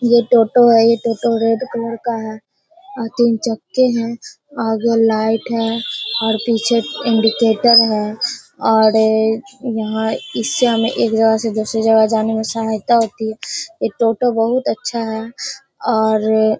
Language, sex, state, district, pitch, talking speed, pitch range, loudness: Hindi, female, Bihar, Darbhanga, 230 Hz, 155 wpm, 220-235 Hz, -16 LUFS